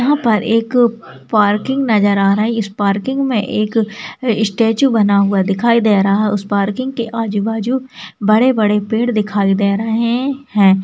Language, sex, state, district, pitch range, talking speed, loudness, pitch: Hindi, female, Rajasthan, Nagaur, 205-235 Hz, 150 wpm, -15 LUFS, 220 Hz